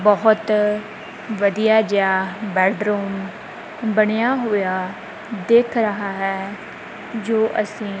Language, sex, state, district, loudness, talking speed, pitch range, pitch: Punjabi, male, Punjab, Kapurthala, -20 LUFS, 80 wpm, 195-220 Hz, 210 Hz